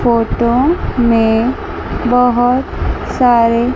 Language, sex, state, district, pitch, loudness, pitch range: Hindi, female, Chandigarh, Chandigarh, 240 Hz, -13 LUFS, 230-245 Hz